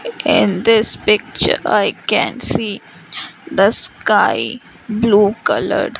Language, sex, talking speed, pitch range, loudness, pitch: English, female, 100 wpm, 205-230 Hz, -15 LUFS, 215 Hz